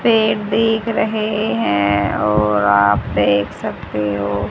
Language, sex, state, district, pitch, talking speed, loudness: Hindi, female, Haryana, Rohtak, 105 Hz, 95 wpm, -17 LUFS